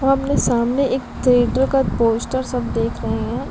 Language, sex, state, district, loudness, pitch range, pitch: Hindi, female, Uttar Pradesh, Jalaun, -19 LUFS, 240-265 Hz, 260 Hz